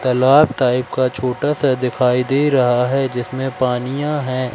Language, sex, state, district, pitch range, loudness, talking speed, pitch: Hindi, male, Madhya Pradesh, Katni, 125-135 Hz, -17 LUFS, 160 wpm, 130 Hz